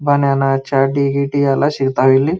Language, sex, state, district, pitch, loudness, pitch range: Kannada, male, Karnataka, Bijapur, 140 Hz, -15 LUFS, 135-140 Hz